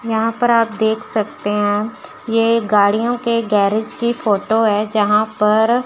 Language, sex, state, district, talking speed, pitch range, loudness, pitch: Hindi, female, Chandigarh, Chandigarh, 145 wpm, 210-230 Hz, -16 LUFS, 220 Hz